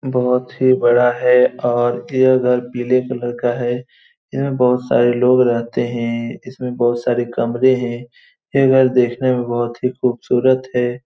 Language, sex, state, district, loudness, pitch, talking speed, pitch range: Hindi, male, Bihar, Saran, -17 LUFS, 125 Hz, 165 wpm, 120-125 Hz